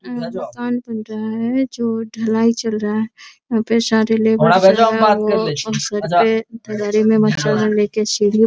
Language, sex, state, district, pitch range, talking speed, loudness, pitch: Hindi, female, Bihar, Araria, 210-230 Hz, 135 wpm, -17 LUFS, 220 Hz